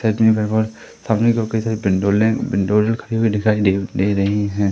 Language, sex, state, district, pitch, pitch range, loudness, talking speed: Hindi, male, Madhya Pradesh, Katni, 110 Hz, 100-110 Hz, -18 LUFS, 90 wpm